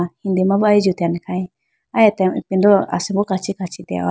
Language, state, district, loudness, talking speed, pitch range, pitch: Idu Mishmi, Arunachal Pradesh, Lower Dibang Valley, -18 LUFS, 190 wpm, 180-200 Hz, 190 Hz